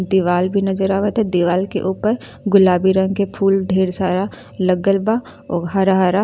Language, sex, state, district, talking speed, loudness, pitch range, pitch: Bhojpuri, female, Uttar Pradesh, Ghazipur, 165 wpm, -17 LUFS, 185-200 Hz, 190 Hz